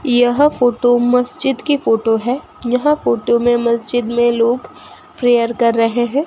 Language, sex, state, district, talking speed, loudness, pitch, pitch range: Hindi, female, Rajasthan, Bikaner, 155 wpm, -15 LUFS, 245 Hz, 235-250 Hz